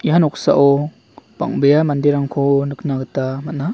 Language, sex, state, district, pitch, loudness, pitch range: Garo, male, Meghalaya, West Garo Hills, 140 Hz, -17 LUFS, 140-150 Hz